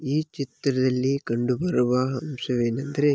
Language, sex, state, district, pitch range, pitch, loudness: Kannada, male, Karnataka, Bellary, 125-145 Hz, 135 Hz, -25 LUFS